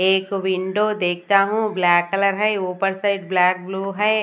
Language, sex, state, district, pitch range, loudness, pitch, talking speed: Hindi, female, Odisha, Nuapada, 185-205 Hz, -20 LUFS, 195 Hz, 170 wpm